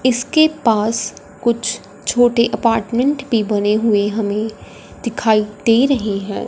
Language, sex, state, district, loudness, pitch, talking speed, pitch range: Hindi, female, Punjab, Fazilka, -17 LUFS, 230 Hz, 120 wpm, 210-245 Hz